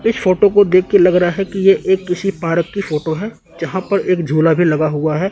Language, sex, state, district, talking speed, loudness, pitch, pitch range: Hindi, male, Chandigarh, Chandigarh, 260 wpm, -15 LUFS, 185 Hz, 165-195 Hz